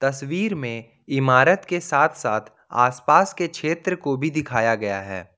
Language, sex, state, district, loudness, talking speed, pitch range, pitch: Hindi, male, Jharkhand, Ranchi, -21 LUFS, 165 wpm, 115-170 Hz, 135 Hz